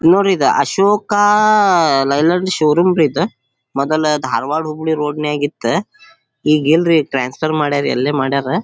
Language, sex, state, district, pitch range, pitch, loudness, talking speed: Kannada, male, Karnataka, Dharwad, 145-185 Hz, 155 Hz, -15 LUFS, 145 wpm